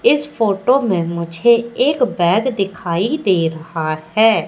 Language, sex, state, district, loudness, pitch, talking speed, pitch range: Hindi, female, Madhya Pradesh, Katni, -17 LUFS, 195 Hz, 120 wpm, 170-235 Hz